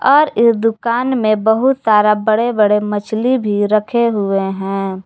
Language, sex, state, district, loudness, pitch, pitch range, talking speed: Hindi, female, Jharkhand, Garhwa, -14 LUFS, 215 Hz, 205-235 Hz, 155 wpm